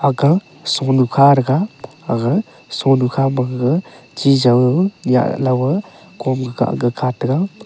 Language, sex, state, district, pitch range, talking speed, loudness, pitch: Wancho, male, Arunachal Pradesh, Longding, 125-165 Hz, 125 wpm, -16 LUFS, 135 Hz